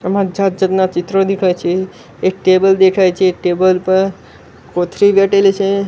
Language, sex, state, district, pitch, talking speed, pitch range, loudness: Gujarati, male, Gujarat, Gandhinagar, 190 Hz, 165 wpm, 185-195 Hz, -13 LUFS